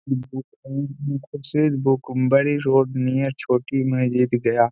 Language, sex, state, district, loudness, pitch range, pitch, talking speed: Hindi, male, Bihar, Gaya, -21 LUFS, 130-140 Hz, 135 Hz, 65 wpm